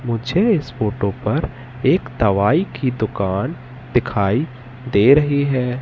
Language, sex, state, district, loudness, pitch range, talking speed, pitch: Hindi, male, Madhya Pradesh, Katni, -18 LUFS, 110-140 Hz, 125 wpm, 125 Hz